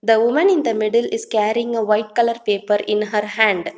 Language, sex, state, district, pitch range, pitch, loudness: English, female, Telangana, Hyderabad, 210-235 Hz, 220 Hz, -18 LUFS